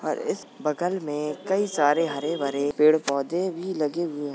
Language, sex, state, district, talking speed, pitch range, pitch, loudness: Hindi, male, Uttar Pradesh, Jalaun, 195 wpm, 145-175 Hz, 150 Hz, -25 LUFS